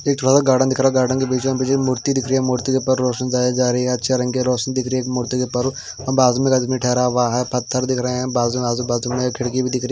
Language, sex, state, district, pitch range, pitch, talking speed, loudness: Hindi, male, Himachal Pradesh, Shimla, 125-130 Hz, 125 Hz, 350 wpm, -19 LUFS